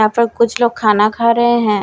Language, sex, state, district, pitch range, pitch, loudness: Hindi, female, Bihar, Katihar, 215-235 Hz, 235 Hz, -14 LUFS